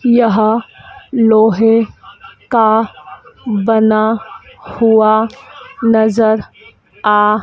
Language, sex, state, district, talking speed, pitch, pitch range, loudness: Hindi, female, Madhya Pradesh, Dhar, 55 wpm, 220 Hz, 215-230 Hz, -13 LUFS